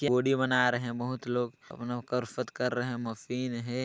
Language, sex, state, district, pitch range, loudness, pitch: Hindi, male, Chhattisgarh, Sarguja, 120-125 Hz, -31 LUFS, 125 Hz